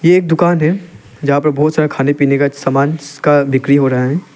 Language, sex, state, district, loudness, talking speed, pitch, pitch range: Hindi, male, Arunachal Pradesh, Lower Dibang Valley, -13 LUFS, 220 wpm, 145 Hz, 140-155 Hz